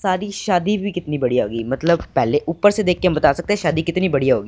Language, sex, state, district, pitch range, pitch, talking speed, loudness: Hindi, male, Punjab, Fazilka, 150-200 Hz, 175 Hz, 255 wpm, -19 LUFS